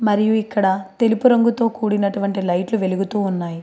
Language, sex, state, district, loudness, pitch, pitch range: Telugu, female, Andhra Pradesh, Srikakulam, -19 LUFS, 205 Hz, 190-225 Hz